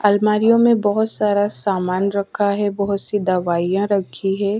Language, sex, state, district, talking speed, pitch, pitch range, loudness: Hindi, female, Madhya Pradesh, Dhar, 155 wpm, 200 Hz, 195-210 Hz, -18 LUFS